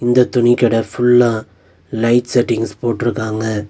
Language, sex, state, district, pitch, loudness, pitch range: Tamil, male, Tamil Nadu, Nilgiris, 115 Hz, -15 LUFS, 110-120 Hz